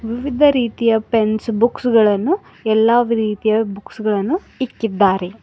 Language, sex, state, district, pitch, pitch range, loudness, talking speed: Kannada, female, Karnataka, Bidar, 225 Hz, 215-240 Hz, -17 LUFS, 110 wpm